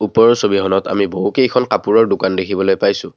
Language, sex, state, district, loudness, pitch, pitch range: Assamese, male, Assam, Kamrup Metropolitan, -15 LUFS, 105 Hz, 100-125 Hz